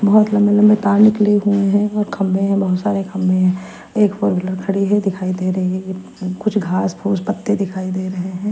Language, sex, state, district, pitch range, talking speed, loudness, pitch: Hindi, female, Punjab, Fazilka, 185-205 Hz, 210 wpm, -17 LUFS, 195 Hz